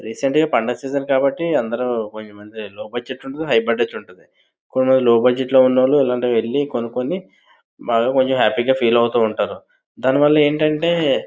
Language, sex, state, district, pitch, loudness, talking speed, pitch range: Telugu, male, Andhra Pradesh, Visakhapatnam, 130 Hz, -18 LUFS, 140 wpm, 115-140 Hz